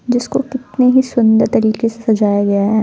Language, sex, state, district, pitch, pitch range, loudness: Hindi, female, Punjab, Fazilka, 230 Hz, 215-250 Hz, -14 LUFS